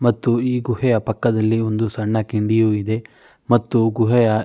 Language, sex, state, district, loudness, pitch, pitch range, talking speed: Kannada, male, Karnataka, Mysore, -19 LUFS, 115 Hz, 110-120 Hz, 135 wpm